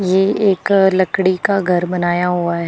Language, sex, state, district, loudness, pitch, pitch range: Hindi, female, Punjab, Pathankot, -15 LUFS, 185 Hz, 180-195 Hz